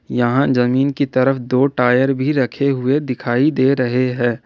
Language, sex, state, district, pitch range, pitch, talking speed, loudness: Hindi, male, Jharkhand, Ranchi, 125-135 Hz, 130 Hz, 175 wpm, -17 LUFS